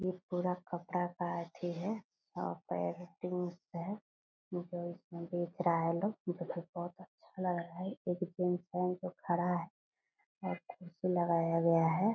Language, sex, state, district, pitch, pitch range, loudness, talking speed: Hindi, female, Bihar, Purnia, 175 Hz, 175-185 Hz, -37 LUFS, 145 wpm